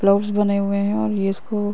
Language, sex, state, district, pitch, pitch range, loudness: Hindi, female, Uttar Pradesh, Varanasi, 200 Hz, 200-210 Hz, -21 LUFS